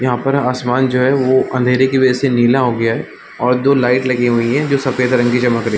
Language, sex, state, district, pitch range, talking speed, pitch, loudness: Hindi, male, Chhattisgarh, Bilaspur, 120-130 Hz, 280 wpm, 125 Hz, -14 LUFS